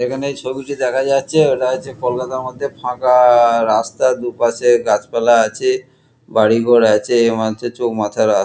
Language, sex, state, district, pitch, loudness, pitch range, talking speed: Bengali, male, West Bengal, Kolkata, 125 Hz, -15 LUFS, 115-130 Hz, 135 wpm